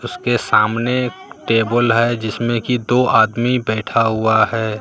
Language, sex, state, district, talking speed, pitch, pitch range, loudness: Hindi, male, Bihar, Katihar, 135 wpm, 115 Hz, 110-120 Hz, -16 LUFS